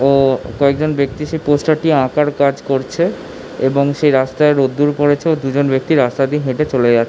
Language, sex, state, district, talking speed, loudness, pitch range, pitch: Bengali, male, West Bengal, Malda, 195 wpm, -15 LUFS, 135-150 Hz, 140 Hz